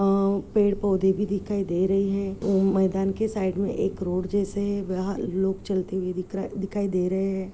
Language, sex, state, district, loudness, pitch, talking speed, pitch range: Hindi, female, Maharashtra, Solapur, -25 LUFS, 195 Hz, 190 wpm, 190-200 Hz